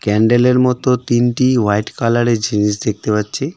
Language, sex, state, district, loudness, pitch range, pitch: Bengali, male, West Bengal, Darjeeling, -15 LUFS, 105-125 Hz, 120 Hz